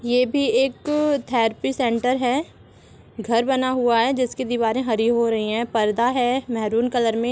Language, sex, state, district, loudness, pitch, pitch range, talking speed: Hindi, female, Jharkhand, Sahebganj, -21 LUFS, 240 Hz, 230-255 Hz, 170 wpm